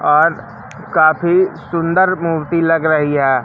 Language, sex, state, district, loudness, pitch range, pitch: Hindi, male, Madhya Pradesh, Katni, -15 LUFS, 155-175 Hz, 165 Hz